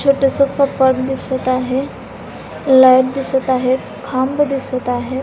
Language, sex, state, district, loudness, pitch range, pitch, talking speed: Marathi, female, Maharashtra, Dhule, -15 LUFS, 255-270 Hz, 265 Hz, 115 wpm